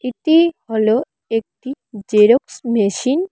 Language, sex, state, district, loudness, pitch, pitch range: Bengali, female, West Bengal, Cooch Behar, -16 LUFS, 240 Hz, 220-290 Hz